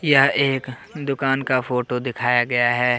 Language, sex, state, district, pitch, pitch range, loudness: Hindi, male, Jharkhand, Deoghar, 130 Hz, 125-135 Hz, -20 LUFS